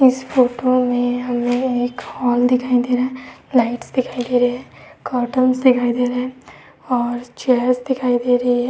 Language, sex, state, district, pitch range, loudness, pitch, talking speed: Hindi, female, Uttar Pradesh, Etah, 245-255 Hz, -18 LUFS, 250 Hz, 180 wpm